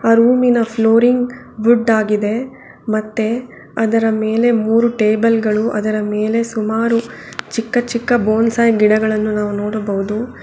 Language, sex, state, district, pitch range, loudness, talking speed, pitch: Kannada, female, Karnataka, Bangalore, 215-235 Hz, -16 LUFS, 120 wpm, 225 Hz